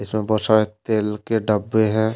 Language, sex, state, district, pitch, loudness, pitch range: Hindi, male, Jharkhand, Deoghar, 110 Hz, -20 LUFS, 105-110 Hz